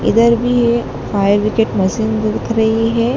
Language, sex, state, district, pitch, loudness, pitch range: Hindi, female, Madhya Pradesh, Dhar, 225 Hz, -15 LUFS, 215-235 Hz